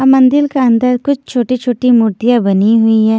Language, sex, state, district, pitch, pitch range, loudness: Hindi, female, Maharashtra, Washim, 245 Hz, 225-260 Hz, -11 LUFS